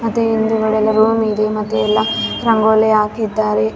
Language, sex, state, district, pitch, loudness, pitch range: Kannada, female, Karnataka, Raichur, 220 Hz, -15 LUFS, 215-220 Hz